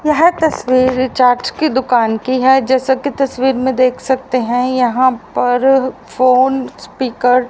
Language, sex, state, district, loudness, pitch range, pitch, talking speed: Hindi, female, Haryana, Rohtak, -14 LUFS, 250-265 Hz, 255 Hz, 150 wpm